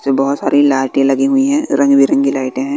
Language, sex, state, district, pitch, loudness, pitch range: Hindi, female, Bihar, West Champaran, 140 Hz, -13 LUFS, 135-145 Hz